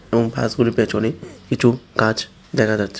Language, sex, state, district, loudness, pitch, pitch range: Bengali, male, Tripura, West Tripura, -20 LUFS, 115 Hz, 110-120 Hz